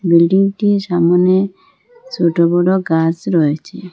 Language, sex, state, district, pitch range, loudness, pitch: Bengali, female, Assam, Hailakandi, 170-195 Hz, -14 LUFS, 180 Hz